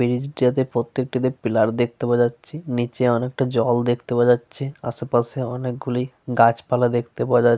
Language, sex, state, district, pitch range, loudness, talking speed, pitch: Bengali, male, Jharkhand, Sahebganj, 120-130 Hz, -21 LUFS, 160 wpm, 125 Hz